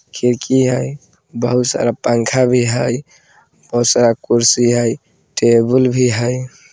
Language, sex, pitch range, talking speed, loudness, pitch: Bhojpuri, male, 120-125 Hz, 125 wpm, -15 LUFS, 120 Hz